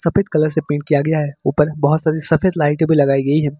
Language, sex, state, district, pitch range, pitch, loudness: Hindi, male, Uttar Pradesh, Lucknow, 145-160 Hz, 155 Hz, -16 LUFS